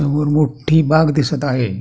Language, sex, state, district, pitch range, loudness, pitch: Marathi, male, Maharashtra, Pune, 145-155 Hz, -16 LUFS, 150 Hz